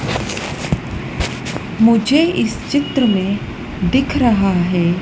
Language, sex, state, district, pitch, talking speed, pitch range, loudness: Hindi, female, Madhya Pradesh, Dhar, 225 Hz, 85 wpm, 190-270 Hz, -17 LUFS